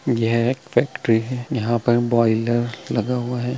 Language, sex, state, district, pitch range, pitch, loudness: Hindi, male, Chhattisgarh, Bilaspur, 115-125 Hz, 120 Hz, -21 LUFS